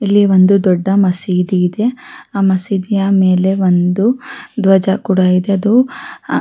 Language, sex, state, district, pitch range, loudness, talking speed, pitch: Kannada, female, Karnataka, Mysore, 185-210 Hz, -13 LUFS, 130 wpm, 195 Hz